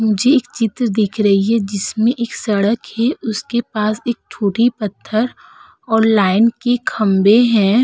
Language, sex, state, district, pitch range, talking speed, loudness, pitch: Hindi, female, Uttar Pradesh, Budaun, 210-235 Hz, 155 wpm, -16 LUFS, 220 Hz